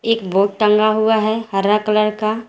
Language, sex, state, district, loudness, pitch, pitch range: Hindi, female, Jharkhand, Garhwa, -16 LUFS, 215 Hz, 210-220 Hz